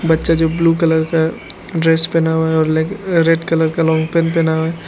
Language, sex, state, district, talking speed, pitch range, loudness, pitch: Hindi, male, Arunachal Pradesh, Lower Dibang Valley, 220 wpm, 160-165 Hz, -15 LUFS, 165 Hz